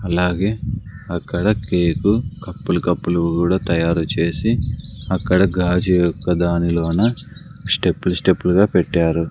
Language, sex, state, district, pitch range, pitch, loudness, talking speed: Telugu, male, Andhra Pradesh, Sri Satya Sai, 85-105 Hz, 90 Hz, -18 LUFS, 130 wpm